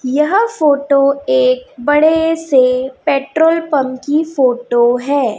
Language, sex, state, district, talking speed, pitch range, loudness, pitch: Hindi, female, Chhattisgarh, Raipur, 110 wpm, 260-320 Hz, -14 LUFS, 285 Hz